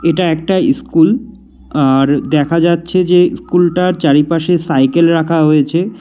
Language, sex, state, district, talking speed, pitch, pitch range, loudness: Bengali, male, West Bengal, Alipurduar, 120 wpm, 170 Hz, 155-180 Hz, -12 LUFS